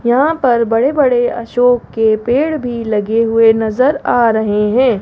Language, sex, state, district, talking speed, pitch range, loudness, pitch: Hindi, female, Rajasthan, Jaipur, 165 wpm, 225-255 Hz, -13 LUFS, 235 Hz